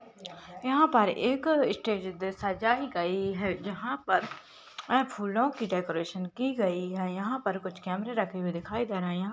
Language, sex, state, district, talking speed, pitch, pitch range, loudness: Hindi, female, Goa, North and South Goa, 165 wpm, 195 Hz, 185-235 Hz, -30 LUFS